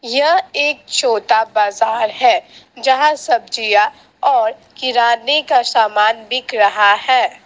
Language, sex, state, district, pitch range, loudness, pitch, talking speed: Hindi, female, Assam, Sonitpur, 220-310 Hz, -15 LUFS, 255 Hz, 115 wpm